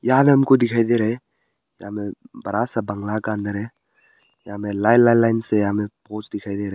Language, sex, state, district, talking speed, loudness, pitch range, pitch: Hindi, male, Arunachal Pradesh, Papum Pare, 240 wpm, -20 LUFS, 105-115 Hz, 110 Hz